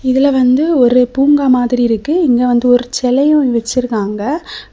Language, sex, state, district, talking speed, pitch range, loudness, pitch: Tamil, female, Tamil Nadu, Kanyakumari, 140 wpm, 245-280 Hz, -12 LUFS, 250 Hz